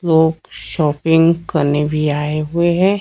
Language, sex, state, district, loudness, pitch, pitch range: Hindi, female, Himachal Pradesh, Shimla, -16 LUFS, 160 Hz, 150-170 Hz